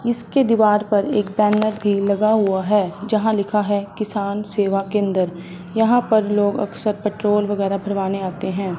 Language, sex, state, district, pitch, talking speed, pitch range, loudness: Hindi, female, Punjab, Fazilka, 205 Hz, 165 wpm, 195-215 Hz, -19 LUFS